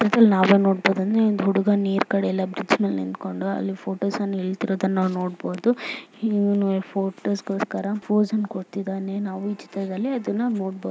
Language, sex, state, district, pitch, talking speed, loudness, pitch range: Kannada, female, Karnataka, Mysore, 195 Hz, 105 wpm, -23 LUFS, 190-205 Hz